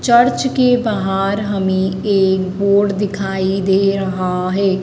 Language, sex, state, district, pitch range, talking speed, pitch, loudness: Hindi, female, Madhya Pradesh, Dhar, 190-205 Hz, 125 wpm, 195 Hz, -16 LUFS